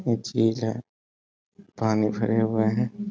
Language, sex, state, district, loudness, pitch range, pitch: Hindi, male, Bihar, Sitamarhi, -25 LUFS, 105-115 Hz, 110 Hz